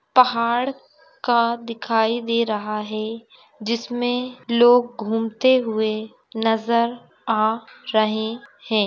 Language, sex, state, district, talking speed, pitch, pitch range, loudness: Hindi, female, Maharashtra, Chandrapur, 95 wpm, 230 Hz, 220-240 Hz, -21 LUFS